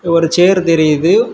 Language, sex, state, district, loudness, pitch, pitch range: Tamil, male, Tamil Nadu, Kanyakumari, -11 LUFS, 170 Hz, 165-185 Hz